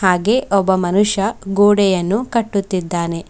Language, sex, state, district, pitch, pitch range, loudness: Kannada, female, Karnataka, Bidar, 195 Hz, 185-205 Hz, -16 LUFS